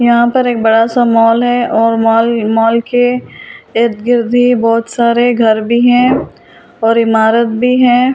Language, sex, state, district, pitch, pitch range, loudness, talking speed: Hindi, female, Delhi, New Delhi, 235 Hz, 225-245 Hz, -11 LUFS, 155 wpm